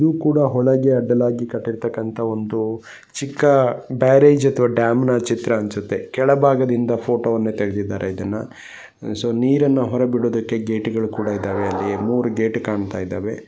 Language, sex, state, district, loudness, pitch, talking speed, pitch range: Kannada, male, Karnataka, Gulbarga, -19 LUFS, 115 Hz, 115 wpm, 110-130 Hz